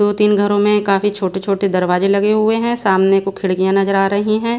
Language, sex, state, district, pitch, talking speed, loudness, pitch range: Hindi, female, Bihar, West Champaran, 200 Hz, 235 wpm, -15 LUFS, 195-210 Hz